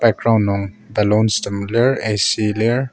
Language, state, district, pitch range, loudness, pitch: Ao, Nagaland, Kohima, 105-115 Hz, -17 LUFS, 105 Hz